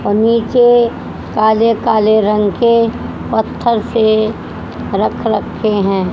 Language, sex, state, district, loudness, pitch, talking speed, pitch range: Hindi, female, Haryana, Jhajjar, -13 LUFS, 220 Hz, 110 wpm, 215-230 Hz